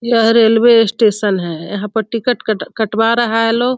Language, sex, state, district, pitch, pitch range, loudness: Hindi, female, Bihar, Sitamarhi, 225 Hz, 210-235 Hz, -14 LUFS